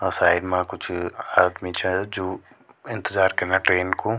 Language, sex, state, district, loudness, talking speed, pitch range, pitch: Garhwali, male, Uttarakhand, Tehri Garhwal, -22 LUFS, 160 wpm, 90-95 Hz, 90 Hz